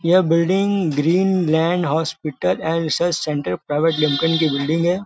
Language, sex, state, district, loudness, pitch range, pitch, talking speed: Hindi, male, Uttar Pradesh, Gorakhpur, -19 LUFS, 150-175 Hz, 165 Hz, 155 wpm